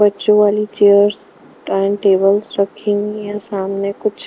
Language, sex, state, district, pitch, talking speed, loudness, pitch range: Hindi, female, Maharashtra, Mumbai Suburban, 205 Hz, 155 wpm, -15 LUFS, 200-210 Hz